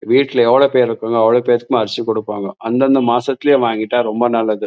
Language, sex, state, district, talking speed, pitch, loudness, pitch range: Tamil, male, Karnataka, Chamarajanagar, 180 wpm, 120 Hz, -15 LUFS, 110-130 Hz